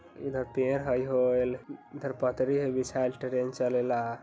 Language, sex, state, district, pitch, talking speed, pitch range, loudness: Bajjika, male, Bihar, Vaishali, 130 Hz, 140 wpm, 125-130 Hz, -30 LUFS